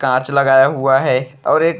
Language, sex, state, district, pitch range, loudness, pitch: Bhojpuri, male, Uttar Pradesh, Deoria, 130-140 Hz, -14 LUFS, 135 Hz